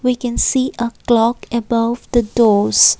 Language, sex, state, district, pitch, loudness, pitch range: English, female, Assam, Kamrup Metropolitan, 235 Hz, -16 LUFS, 230-245 Hz